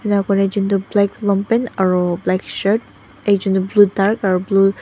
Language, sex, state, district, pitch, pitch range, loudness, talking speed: Nagamese, female, Nagaland, Dimapur, 195 Hz, 190-205 Hz, -17 LUFS, 150 wpm